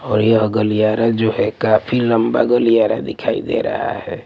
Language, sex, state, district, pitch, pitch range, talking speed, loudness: Hindi, male, Punjab, Pathankot, 110 Hz, 110-115 Hz, 170 wpm, -16 LUFS